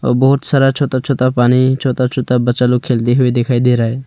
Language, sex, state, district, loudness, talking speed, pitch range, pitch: Hindi, male, Arunachal Pradesh, Longding, -13 LUFS, 220 wpm, 125-130 Hz, 125 Hz